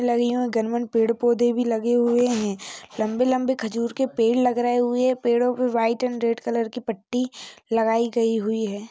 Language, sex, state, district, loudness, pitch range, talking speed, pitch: Hindi, female, Maharashtra, Aurangabad, -23 LUFS, 225-245 Hz, 190 wpm, 235 Hz